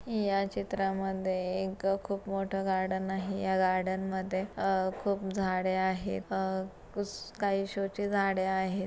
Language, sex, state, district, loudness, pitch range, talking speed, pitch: Marathi, female, Maharashtra, Pune, -32 LUFS, 190-195 Hz, 140 wpm, 190 Hz